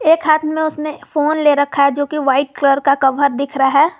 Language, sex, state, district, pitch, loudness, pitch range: Hindi, female, Jharkhand, Garhwa, 290 Hz, -15 LUFS, 275-310 Hz